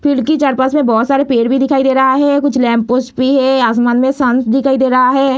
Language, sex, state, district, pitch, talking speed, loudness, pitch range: Hindi, female, Bihar, Lakhisarai, 265 Hz, 265 wpm, -12 LUFS, 250-275 Hz